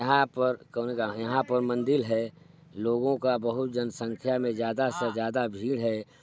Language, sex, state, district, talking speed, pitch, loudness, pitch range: Hindi, male, Chhattisgarh, Sarguja, 175 wpm, 125 Hz, -29 LUFS, 115-130 Hz